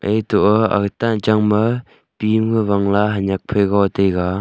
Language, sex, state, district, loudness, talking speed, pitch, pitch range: Wancho, male, Arunachal Pradesh, Longding, -17 LUFS, 135 wpm, 105 Hz, 100-110 Hz